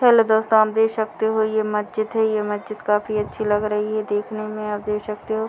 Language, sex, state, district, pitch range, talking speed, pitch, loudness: Hindi, female, Bihar, Muzaffarpur, 210-220 Hz, 240 wpm, 215 Hz, -21 LUFS